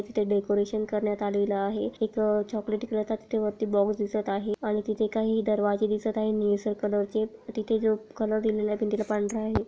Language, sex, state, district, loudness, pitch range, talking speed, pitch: Marathi, female, Maharashtra, Pune, -28 LUFS, 205-220 Hz, 190 wpm, 215 Hz